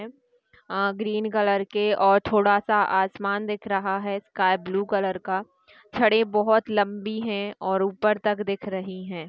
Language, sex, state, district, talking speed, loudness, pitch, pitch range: Hindi, female, Uttar Pradesh, Hamirpur, 160 wpm, -24 LUFS, 205 Hz, 195-215 Hz